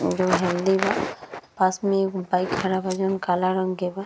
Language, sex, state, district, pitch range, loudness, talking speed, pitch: Bhojpuri, female, Uttar Pradesh, Gorakhpur, 185-190 Hz, -23 LUFS, 205 wpm, 185 Hz